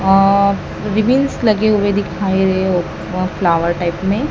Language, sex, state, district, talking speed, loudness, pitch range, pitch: Hindi, male, Madhya Pradesh, Dhar, 155 wpm, -16 LUFS, 180-205 Hz, 195 Hz